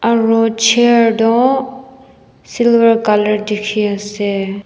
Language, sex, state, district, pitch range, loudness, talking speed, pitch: Nagamese, female, Nagaland, Dimapur, 210-235 Hz, -13 LUFS, 75 wpm, 225 Hz